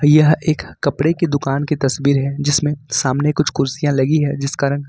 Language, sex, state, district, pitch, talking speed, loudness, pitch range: Hindi, male, Jharkhand, Ranchi, 145 Hz, 210 wpm, -17 LUFS, 140-150 Hz